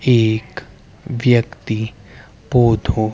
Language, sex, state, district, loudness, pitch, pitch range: Hindi, male, Haryana, Rohtak, -18 LUFS, 110 Hz, 110-120 Hz